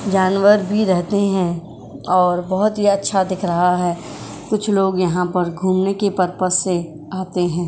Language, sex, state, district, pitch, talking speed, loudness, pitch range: Hindi, female, Uttar Pradesh, Jyotiba Phule Nagar, 185 Hz, 165 wpm, -18 LUFS, 175-195 Hz